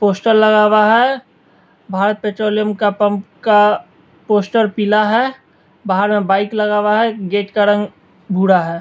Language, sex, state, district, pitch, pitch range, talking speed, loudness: Hindi, male, Bihar, West Champaran, 210 Hz, 195-215 Hz, 155 wpm, -15 LUFS